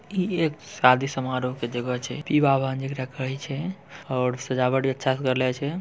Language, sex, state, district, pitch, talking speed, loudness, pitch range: Hindi, male, Bihar, Purnia, 135 Hz, 145 wpm, -25 LUFS, 130-140 Hz